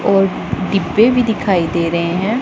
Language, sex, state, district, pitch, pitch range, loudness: Hindi, female, Punjab, Pathankot, 195 Hz, 170-220 Hz, -15 LUFS